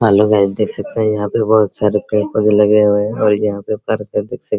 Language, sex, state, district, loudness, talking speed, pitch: Hindi, male, Bihar, Araria, -15 LUFS, 275 wpm, 105 Hz